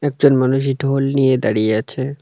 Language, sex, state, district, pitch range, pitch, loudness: Bengali, male, West Bengal, Cooch Behar, 130-135 Hz, 135 Hz, -16 LUFS